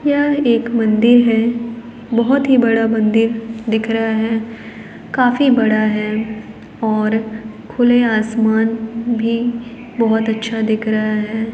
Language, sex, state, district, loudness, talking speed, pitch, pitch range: Hindi, female, Bihar, Gaya, -16 LUFS, 120 wpm, 225 Hz, 220-235 Hz